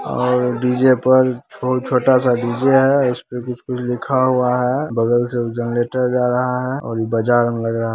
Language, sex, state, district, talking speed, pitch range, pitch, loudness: Maithili, male, Bihar, Begusarai, 190 wpm, 120-130 Hz, 125 Hz, -17 LUFS